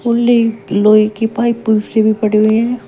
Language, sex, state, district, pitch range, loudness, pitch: Hindi, female, Uttar Pradesh, Shamli, 215-235 Hz, -13 LUFS, 220 Hz